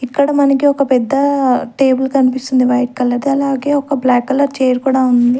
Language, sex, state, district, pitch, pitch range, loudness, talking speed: Telugu, female, Andhra Pradesh, Sri Satya Sai, 265 Hz, 255-280 Hz, -14 LUFS, 175 wpm